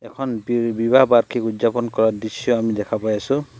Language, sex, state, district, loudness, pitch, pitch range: Assamese, male, Assam, Sonitpur, -19 LUFS, 115 Hz, 110-120 Hz